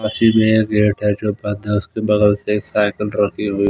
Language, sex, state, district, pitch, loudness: Hindi, male, Punjab, Fazilka, 105 Hz, -17 LUFS